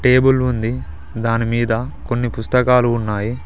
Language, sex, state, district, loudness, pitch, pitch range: Telugu, male, Telangana, Mahabubabad, -18 LUFS, 115 Hz, 115-125 Hz